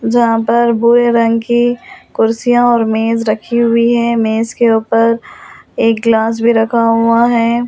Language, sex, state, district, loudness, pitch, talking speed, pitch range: Hindi, female, Delhi, New Delhi, -12 LUFS, 230 Hz, 155 wpm, 225-235 Hz